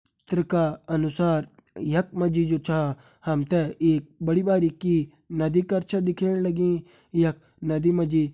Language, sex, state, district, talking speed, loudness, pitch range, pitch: Hindi, male, Uttarakhand, Uttarkashi, 160 wpm, -25 LUFS, 155-175 Hz, 165 Hz